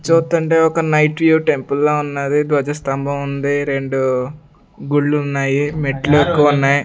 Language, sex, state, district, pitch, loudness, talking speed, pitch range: Telugu, male, Andhra Pradesh, Sri Satya Sai, 145 Hz, -16 LUFS, 130 wpm, 140-150 Hz